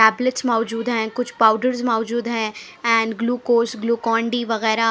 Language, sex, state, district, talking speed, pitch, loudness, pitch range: Hindi, female, Haryana, Charkhi Dadri, 145 wpm, 230 Hz, -20 LUFS, 225-240 Hz